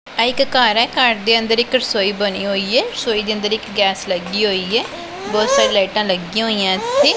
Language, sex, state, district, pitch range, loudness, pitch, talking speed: Punjabi, female, Punjab, Pathankot, 200-235 Hz, -16 LUFS, 215 Hz, 220 wpm